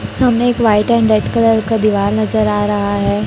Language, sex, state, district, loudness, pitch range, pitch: Hindi, female, Chhattisgarh, Raipur, -14 LUFS, 205-230 Hz, 215 Hz